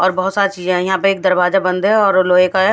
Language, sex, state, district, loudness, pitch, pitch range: Hindi, female, Haryana, Charkhi Dadri, -14 LUFS, 185 Hz, 185-195 Hz